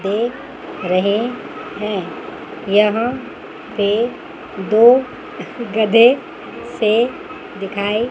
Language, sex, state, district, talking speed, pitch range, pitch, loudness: Hindi, female, Chandigarh, Chandigarh, 65 wpm, 205-245 Hz, 225 Hz, -17 LUFS